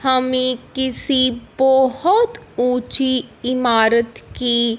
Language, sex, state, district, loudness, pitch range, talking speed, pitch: Hindi, female, Punjab, Fazilka, -17 LUFS, 240-265 Hz, 75 wpm, 255 Hz